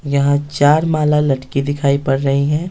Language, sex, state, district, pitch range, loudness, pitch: Hindi, male, Bihar, Patna, 140-150 Hz, -16 LUFS, 145 Hz